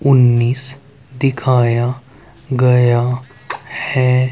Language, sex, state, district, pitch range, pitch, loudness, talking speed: Hindi, male, Haryana, Rohtak, 120-135 Hz, 130 Hz, -15 LUFS, 55 wpm